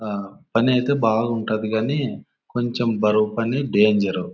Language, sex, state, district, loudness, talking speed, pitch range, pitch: Telugu, male, Andhra Pradesh, Anantapur, -21 LUFS, 140 wpm, 105-120 Hz, 110 Hz